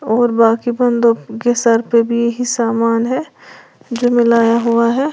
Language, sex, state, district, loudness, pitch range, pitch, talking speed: Hindi, female, Uttar Pradesh, Lalitpur, -14 LUFS, 230-245 Hz, 235 Hz, 150 wpm